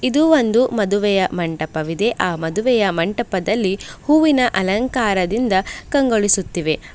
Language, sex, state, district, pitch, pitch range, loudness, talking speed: Kannada, female, Karnataka, Bidar, 205 Hz, 185-245 Hz, -18 LUFS, 85 wpm